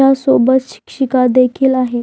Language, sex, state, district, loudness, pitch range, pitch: Marathi, female, Maharashtra, Aurangabad, -13 LUFS, 250-265 Hz, 260 Hz